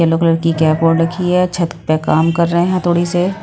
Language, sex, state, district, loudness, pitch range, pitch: Hindi, female, Haryana, Rohtak, -14 LUFS, 165-175 Hz, 170 Hz